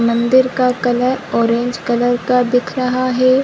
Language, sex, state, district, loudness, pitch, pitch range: Hindi, female, Chhattisgarh, Bilaspur, -15 LUFS, 250 Hz, 240-255 Hz